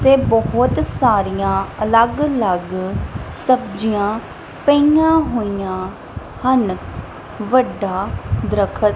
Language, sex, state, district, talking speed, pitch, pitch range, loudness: Punjabi, female, Punjab, Kapurthala, 75 wpm, 215 Hz, 190-255 Hz, -17 LUFS